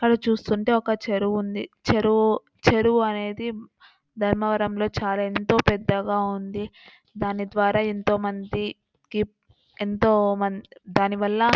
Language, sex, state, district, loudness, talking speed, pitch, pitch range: Telugu, female, Andhra Pradesh, Anantapur, -24 LUFS, 120 wpm, 210 Hz, 205-220 Hz